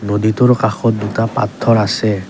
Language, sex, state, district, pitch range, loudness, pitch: Assamese, male, Assam, Kamrup Metropolitan, 105-115 Hz, -15 LUFS, 110 Hz